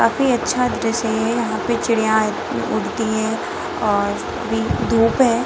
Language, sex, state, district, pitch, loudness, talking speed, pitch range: Hindi, female, Bihar, Muzaffarpur, 225 Hz, -19 LUFS, 155 wpm, 220-235 Hz